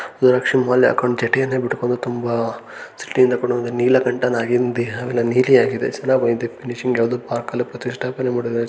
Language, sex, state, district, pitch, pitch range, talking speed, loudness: Kannada, male, Karnataka, Gulbarga, 125 Hz, 120-125 Hz, 125 wpm, -19 LUFS